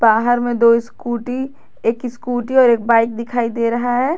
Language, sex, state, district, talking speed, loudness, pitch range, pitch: Hindi, female, Jharkhand, Garhwa, 185 wpm, -17 LUFS, 230-245 Hz, 240 Hz